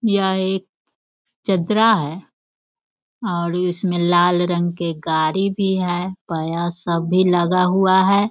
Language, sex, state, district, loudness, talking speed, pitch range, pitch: Hindi, female, Bihar, Sitamarhi, -19 LUFS, 125 wpm, 175-195 Hz, 180 Hz